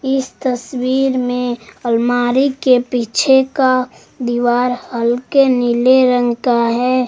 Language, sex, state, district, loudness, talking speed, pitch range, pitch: Hindi, female, Jharkhand, Garhwa, -15 LUFS, 110 wpm, 240-260 Hz, 250 Hz